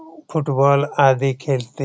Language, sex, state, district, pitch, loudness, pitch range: Hindi, male, Bihar, Jamui, 140 Hz, -18 LUFS, 135-155 Hz